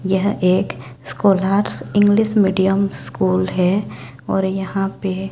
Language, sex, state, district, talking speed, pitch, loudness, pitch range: Hindi, male, Chhattisgarh, Raipur, 115 wpm, 190 Hz, -18 LUFS, 135-195 Hz